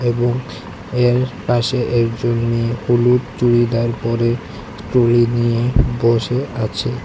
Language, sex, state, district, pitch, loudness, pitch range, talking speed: Bengali, male, Tripura, West Tripura, 120 Hz, -17 LUFS, 115-125 Hz, 100 wpm